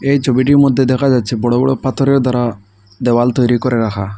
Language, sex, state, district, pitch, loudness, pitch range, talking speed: Bengali, male, Assam, Hailakandi, 125 Hz, -14 LUFS, 120-135 Hz, 185 wpm